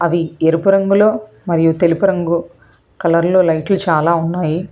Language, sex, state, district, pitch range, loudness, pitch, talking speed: Telugu, female, Telangana, Hyderabad, 165-185 Hz, -15 LUFS, 170 Hz, 125 wpm